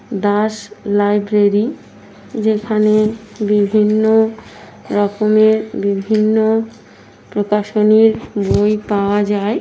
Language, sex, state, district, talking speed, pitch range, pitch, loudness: Bengali, female, West Bengal, Jhargram, 75 wpm, 205-220 Hz, 215 Hz, -15 LUFS